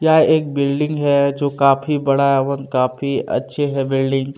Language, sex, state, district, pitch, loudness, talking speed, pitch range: Hindi, male, Chhattisgarh, Kabirdham, 140 Hz, -17 LUFS, 180 wpm, 135-145 Hz